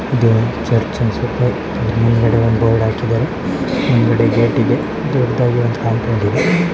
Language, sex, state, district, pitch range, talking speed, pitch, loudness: Kannada, male, Karnataka, Chamarajanagar, 115-120 Hz, 170 wpm, 115 Hz, -16 LUFS